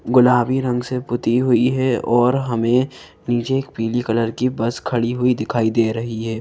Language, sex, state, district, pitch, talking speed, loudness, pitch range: Hindi, female, Madhya Pradesh, Bhopal, 120 Hz, 185 wpm, -19 LUFS, 115-125 Hz